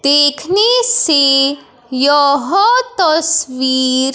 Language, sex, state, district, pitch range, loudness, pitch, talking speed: Hindi, male, Punjab, Fazilka, 270-365 Hz, -12 LUFS, 290 Hz, 60 wpm